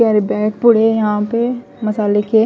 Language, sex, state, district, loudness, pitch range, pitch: Hindi, female, Chhattisgarh, Raipur, -15 LUFS, 210-230 Hz, 220 Hz